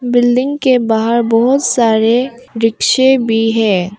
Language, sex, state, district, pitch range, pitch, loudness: Hindi, female, Arunachal Pradesh, Papum Pare, 225-255 Hz, 235 Hz, -12 LUFS